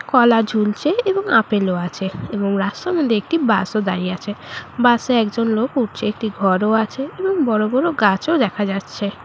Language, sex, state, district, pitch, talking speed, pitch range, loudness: Bengali, female, West Bengal, Purulia, 220 Hz, 180 wpm, 200-250 Hz, -18 LUFS